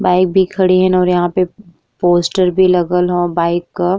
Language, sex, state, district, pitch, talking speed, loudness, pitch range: Bhojpuri, female, Uttar Pradesh, Ghazipur, 180 Hz, 150 wpm, -14 LUFS, 175-185 Hz